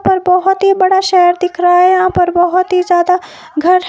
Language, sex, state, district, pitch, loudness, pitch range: Hindi, female, Himachal Pradesh, Shimla, 365 Hz, -11 LUFS, 355-370 Hz